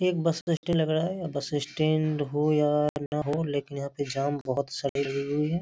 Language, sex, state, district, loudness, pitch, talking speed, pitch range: Hindi, male, Bihar, Darbhanga, -28 LUFS, 150 Hz, 235 wpm, 140-155 Hz